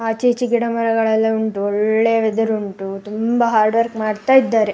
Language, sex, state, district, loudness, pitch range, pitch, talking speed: Kannada, female, Karnataka, Dakshina Kannada, -17 LUFS, 215-230 Hz, 220 Hz, 140 wpm